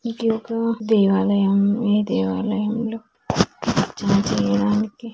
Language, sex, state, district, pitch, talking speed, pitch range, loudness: Telugu, female, Telangana, Nalgonda, 210 Hz, 105 wpm, 200-225 Hz, -21 LUFS